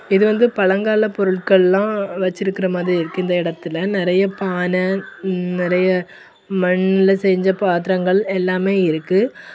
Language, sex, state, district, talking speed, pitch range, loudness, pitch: Tamil, female, Tamil Nadu, Kanyakumari, 105 wpm, 180-195 Hz, -18 LUFS, 190 Hz